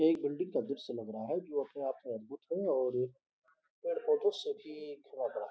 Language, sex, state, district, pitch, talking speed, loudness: Hindi, male, Uttar Pradesh, Gorakhpur, 145 Hz, 220 wpm, -36 LUFS